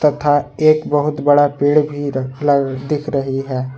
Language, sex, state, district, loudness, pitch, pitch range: Hindi, male, Jharkhand, Ranchi, -16 LUFS, 145 Hz, 135-150 Hz